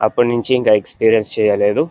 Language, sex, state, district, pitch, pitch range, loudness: Telugu, male, Andhra Pradesh, Anantapur, 110 Hz, 105-120 Hz, -15 LUFS